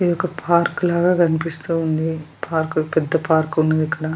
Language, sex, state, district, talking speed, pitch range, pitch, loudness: Telugu, female, Telangana, Nalgonda, 175 wpm, 155-170 Hz, 160 Hz, -19 LUFS